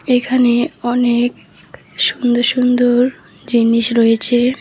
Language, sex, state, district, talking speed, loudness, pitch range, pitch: Bengali, female, West Bengal, Alipurduar, 80 wpm, -14 LUFS, 240-250 Hz, 245 Hz